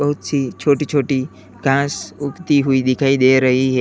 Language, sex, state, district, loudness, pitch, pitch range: Hindi, male, Uttar Pradesh, Lalitpur, -17 LUFS, 135 Hz, 130-145 Hz